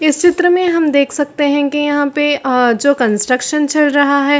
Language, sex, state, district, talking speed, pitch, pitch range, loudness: Hindi, female, Chhattisgarh, Bilaspur, 220 wpm, 290 Hz, 280-300 Hz, -13 LUFS